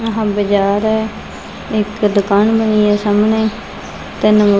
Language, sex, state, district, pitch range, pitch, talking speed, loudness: Punjabi, female, Punjab, Fazilka, 205-220 Hz, 210 Hz, 115 wpm, -14 LUFS